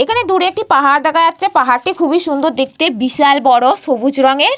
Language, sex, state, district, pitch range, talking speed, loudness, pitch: Bengali, female, West Bengal, Paschim Medinipur, 270-345 Hz, 185 wpm, -12 LUFS, 295 Hz